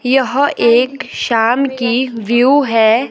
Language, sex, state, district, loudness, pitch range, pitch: Hindi, female, Himachal Pradesh, Shimla, -13 LUFS, 235-265 Hz, 250 Hz